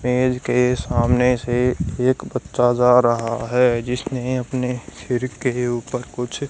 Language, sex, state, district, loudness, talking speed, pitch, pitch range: Hindi, female, Haryana, Jhajjar, -20 LUFS, 140 wpm, 125 Hz, 120-125 Hz